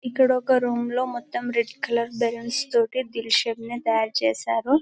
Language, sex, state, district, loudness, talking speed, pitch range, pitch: Telugu, female, Telangana, Karimnagar, -24 LUFS, 185 wpm, 230-255 Hz, 235 Hz